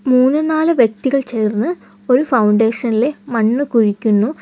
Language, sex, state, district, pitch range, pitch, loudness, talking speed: Malayalam, female, Kerala, Kollam, 220-275 Hz, 245 Hz, -15 LUFS, 110 wpm